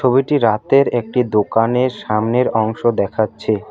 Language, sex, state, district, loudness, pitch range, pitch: Bengali, male, West Bengal, Alipurduar, -16 LUFS, 110-125 Hz, 115 Hz